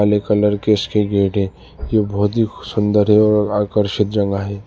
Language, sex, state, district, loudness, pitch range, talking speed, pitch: Hindi, male, Uttar Pradesh, Lalitpur, -17 LUFS, 100-105 Hz, 195 wpm, 105 Hz